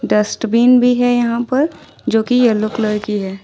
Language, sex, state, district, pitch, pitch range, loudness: Hindi, female, Jharkhand, Ranchi, 235 Hz, 215-245 Hz, -15 LUFS